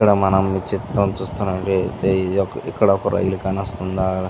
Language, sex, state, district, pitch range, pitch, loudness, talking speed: Telugu, male, Andhra Pradesh, Visakhapatnam, 95-100 Hz, 95 Hz, -20 LUFS, 140 wpm